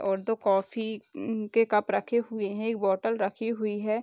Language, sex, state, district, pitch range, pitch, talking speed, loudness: Hindi, female, Bihar, Sitamarhi, 200-230 Hz, 215 Hz, 210 wpm, -28 LUFS